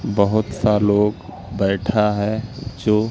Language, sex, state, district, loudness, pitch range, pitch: Hindi, male, Madhya Pradesh, Katni, -19 LUFS, 100-110 Hz, 105 Hz